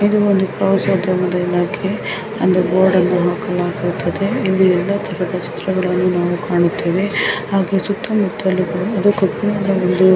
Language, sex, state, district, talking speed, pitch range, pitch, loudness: Kannada, female, Karnataka, Dharwad, 130 wpm, 180-200 Hz, 190 Hz, -17 LUFS